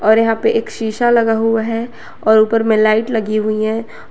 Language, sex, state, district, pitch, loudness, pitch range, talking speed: Hindi, female, Jharkhand, Garhwa, 225 Hz, -15 LUFS, 220-225 Hz, 220 wpm